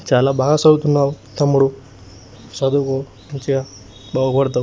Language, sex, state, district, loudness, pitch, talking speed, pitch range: Telugu, male, Telangana, Nalgonda, -17 LUFS, 135 Hz, 105 wpm, 115-140 Hz